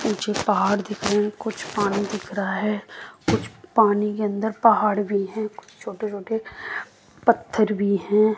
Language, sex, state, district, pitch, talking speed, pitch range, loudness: Hindi, female, Haryana, Jhajjar, 210 Hz, 150 wpm, 205-215 Hz, -23 LUFS